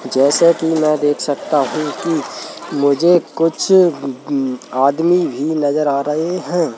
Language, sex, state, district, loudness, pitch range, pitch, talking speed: Hindi, male, Madhya Pradesh, Bhopal, -16 LUFS, 140-170 Hz, 150 Hz, 140 wpm